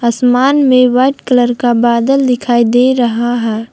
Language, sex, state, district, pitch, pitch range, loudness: Hindi, female, Jharkhand, Palamu, 245 Hz, 235-255 Hz, -11 LUFS